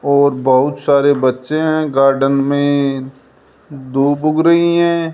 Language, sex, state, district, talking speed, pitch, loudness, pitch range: Hindi, male, Rajasthan, Jaipur, 130 wpm, 140 Hz, -14 LUFS, 135-155 Hz